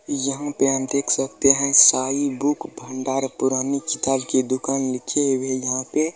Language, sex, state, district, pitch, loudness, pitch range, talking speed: Hindi, male, Bihar, Bhagalpur, 135 Hz, -20 LUFS, 130-140 Hz, 175 wpm